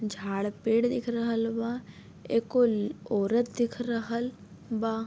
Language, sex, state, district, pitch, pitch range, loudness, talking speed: Bhojpuri, female, Uttar Pradesh, Deoria, 230 Hz, 210-235 Hz, -29 LUFS, 140 wpm